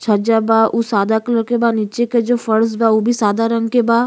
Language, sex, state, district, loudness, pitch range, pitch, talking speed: Bhojpuri, female, Uttar Pradesh, Gorakhpur, -15 LUFS, 220-235 Hz, 230 Hz, 250 wpm